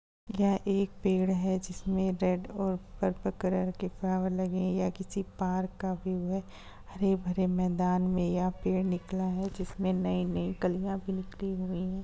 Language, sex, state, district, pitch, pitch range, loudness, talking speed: Hindi, female, Bihar, Gaya, 185 Hz, 185-190 Hz, -31 LUFS, 160 wpm